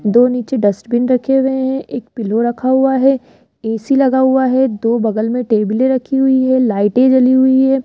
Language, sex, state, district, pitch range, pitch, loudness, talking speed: Hindi, female, Rajasthan, Jaipur, 230-265 Hz, 255 Hz, -14 LUFS, 200 wpm